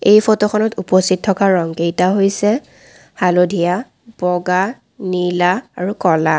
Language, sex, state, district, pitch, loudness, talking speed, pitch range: Assamese, female, Assam, Kamrup Metropolitan, 185 Hz, -16 LUFS, 120 wpm, 180-210 Hz